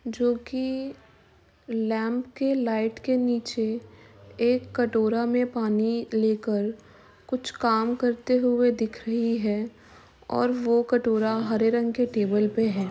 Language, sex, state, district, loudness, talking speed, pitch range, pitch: Hindi, female, Uttar Pradesh, Jyotiba Phule Nagar, -25 LUFS, 130 wpm, 220-245 Hz, 230 Hz